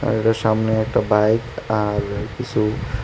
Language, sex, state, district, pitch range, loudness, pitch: Bengali, male, Tripura, West Tripura, 105-115 Hz, -20 LUFS, 110 Hz